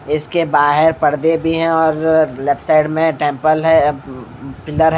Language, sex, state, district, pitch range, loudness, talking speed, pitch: Hindi, male, Bihar, Katihar, 145-160 Hz, -14 LUFS, 170 wpm, 155 Hz